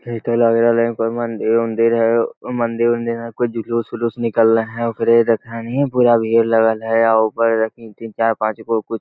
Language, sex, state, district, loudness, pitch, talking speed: Magahi, male, Bihar, Lakhisarai, -17 LUFS, 115 Hz, 175 wpm